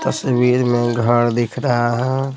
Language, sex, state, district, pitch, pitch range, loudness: Hindi, male, Bihar, Patna, 120 Hz, 120-125 Hz, -17 LUFS